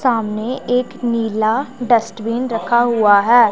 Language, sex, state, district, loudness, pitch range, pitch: Hindi, female, Punjab, Pathankot, -17 LUFS, 220-245 Hz, 235 Hz